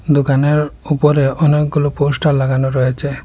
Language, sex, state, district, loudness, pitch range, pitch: Bengali, male, Assam, Hailakandi, -15 LUFS, 135-150 Hz, 145 Hz